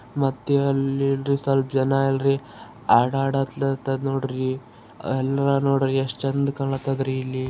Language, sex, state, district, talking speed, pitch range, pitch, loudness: Kannada, male, Karnataka, Gulbarga, 120 wpm, 130-135 Hz, 135 Hz, -23 LUFS